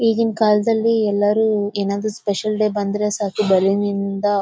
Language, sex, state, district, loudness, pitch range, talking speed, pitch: Kannada, female, Karnataka, Bellary, -19 LUFS, 200-215 Hz, 135 wpm, 205 Hz